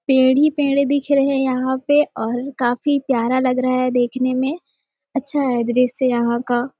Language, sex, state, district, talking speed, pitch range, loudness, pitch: Hindi, female, Chhattisgarh, Sarguja, 185 wpm, 250-280 Hz, -18 LUFS, 260 Hz